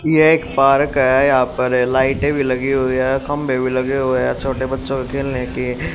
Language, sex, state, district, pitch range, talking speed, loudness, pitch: Hindi, male, Haryana, Jhajjar, 130-135 Hz, 200 wpm, -17 LUFS, 130 Hz